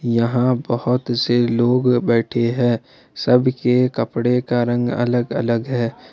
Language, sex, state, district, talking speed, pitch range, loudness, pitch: Hindi, male, Jharkhand, Ranchi, 125 wpm, 120-125 Hz, -18 LUFS, 120 Hz